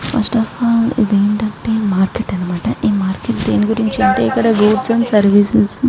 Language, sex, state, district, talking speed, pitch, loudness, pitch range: Telugu, female, Andhra Pradesh, Guntur, 175 wpm, 215 Hz, -15 LUFS, 205-230 Hz